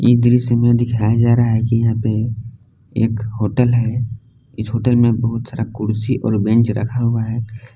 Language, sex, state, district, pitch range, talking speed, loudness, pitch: Hindi, male, Jharkhand, Palamu, 110-120 Hz, 185 wpm, -17 LUFS, 115 Hz